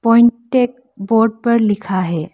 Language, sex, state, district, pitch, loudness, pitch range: Hindi, female, Arunachal Pradesh, Lower Dibang Valley, 230 Hz, -15 LUFS, 195-235 Hz